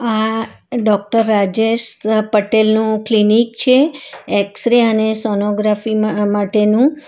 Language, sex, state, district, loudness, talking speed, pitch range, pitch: Gujarati, female, Gujarat, Valsad, -15 LUFS, 100 wpm, 210-230 Hz, 220 Hz